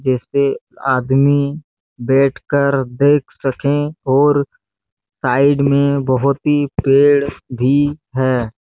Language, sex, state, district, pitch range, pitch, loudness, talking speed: Hindi, male, Chhattisgarh, Bastar, 130-145 Hz, 140 Hz, -16 LUFS, 90 wpm